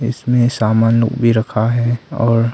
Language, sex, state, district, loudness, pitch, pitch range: Hindi, male, Arunachal Pradesh, Longding, -15 LUFS, 115 Hz, 115-120 Hz